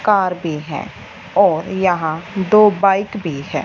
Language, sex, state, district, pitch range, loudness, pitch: Hindi, female, Punjab, Fazilka, 160-200 Hz, -17 LUFS, 185 Hz